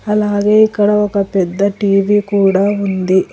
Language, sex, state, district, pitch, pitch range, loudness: Telugu, female, Telangana, Hyderabad, 200 Hz, 195-205 Hz, -13 LUFS